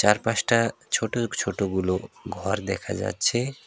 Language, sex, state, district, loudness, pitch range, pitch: Bengali, male, West Bengal, Alipurduar, -25 LUFS, 95-115 Hz, 105 Hz